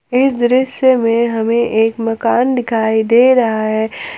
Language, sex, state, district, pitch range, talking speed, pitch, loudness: Hindi, female, Jharkhand, Palamu, 225-250 Hz, 145 wpm, 235 Hz, -14 LUFS